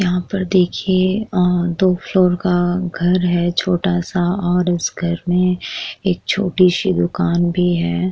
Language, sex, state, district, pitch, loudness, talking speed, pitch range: Hindi, female, Uttar Pradesh, Jyotiba Phule Nagar, 180 Hz, -17 LUFS, 155 wpm, 175-185 Hz